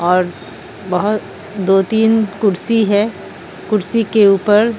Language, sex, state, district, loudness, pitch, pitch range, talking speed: Hindi, female, Bihar, Katihar, -15 LUFS, 205 Hz, 195-220 Hz, 115 wpm